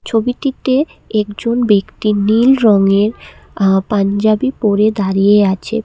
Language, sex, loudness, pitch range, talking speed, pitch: Bengali, female, -14 LUFS, 200-230 Hz, 115 wpm, 215 Hz